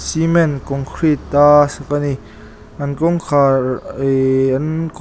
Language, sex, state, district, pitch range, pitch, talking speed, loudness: Mizo, male, Mizoram, Aizawl, 135-155 Hz, 140 Hz, 120 wpm, -16 LUFS